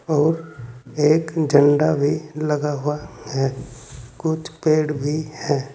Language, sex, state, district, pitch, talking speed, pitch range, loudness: Hindi, male, Uttar Pradesh, Saharanpur, 150 Hz, 115 wpm, 135-155 Hz, -21 LUFS